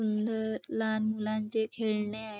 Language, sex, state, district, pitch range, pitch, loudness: Marathi, female, Maharashtra, Chandrapur, 215-220 Hz, 220 Hz, -32 LUFS